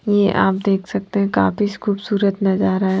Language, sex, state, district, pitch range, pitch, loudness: Hindi, female, Haryana, Jhajjar, 190-205 Hz, 200 Hz, -18 LUFS